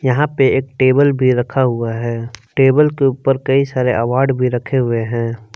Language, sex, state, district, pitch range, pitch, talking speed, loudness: Hindi, male, Jharkhand, Palamu, 120-135 Hz, 130 Hz, 195 wpm, -15 LUFS